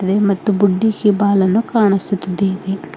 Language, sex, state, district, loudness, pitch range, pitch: Kannada, female, Karnataka, Bidar, -16 LUFS, 190-205 Hz, 200 Hz